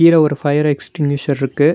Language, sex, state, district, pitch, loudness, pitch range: Tamil, male, Tamil Nadu, Nilgiris, 145 Hz, -16 LUFS, 140-155 Hz